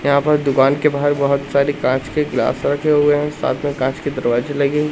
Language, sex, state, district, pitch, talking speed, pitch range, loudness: Hindi, male, Madhya Pradesh, Katni, 140 Hz, 245 wpm, 140-145 Hz, -17 LUFS